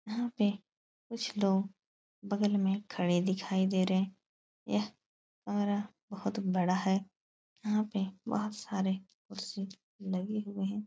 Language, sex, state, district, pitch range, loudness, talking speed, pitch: Hindi, female, Uttar Pradesh, Etah, 190-210 Hz, -34 LUFS, 130 wpm, 195 Hz